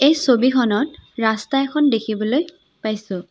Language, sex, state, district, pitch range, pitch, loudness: Assamese, female, Assam, Sonitpur, 215-285 Hz, 250 Hz, -19 LUFS